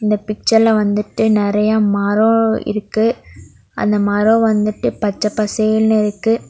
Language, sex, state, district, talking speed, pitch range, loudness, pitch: Tamil, female, Tamil Nadu, Nilgiris, 110 wpm, 210-220 Hz, -15 LUFS, 215 Hz